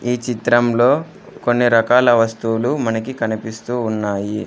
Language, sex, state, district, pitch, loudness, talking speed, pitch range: Telugu, male, Andhra Pradesh, Sri Satya Sai, 115 Hz, -17 LUFS, 105 wpm, 110-120 Hz